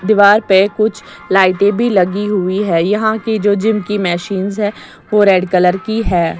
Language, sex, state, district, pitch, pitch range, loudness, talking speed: Hindi, female, Bihar, West Champaran, 200 Hz, 185-210 Hz, -13 LUFS, 185 wpm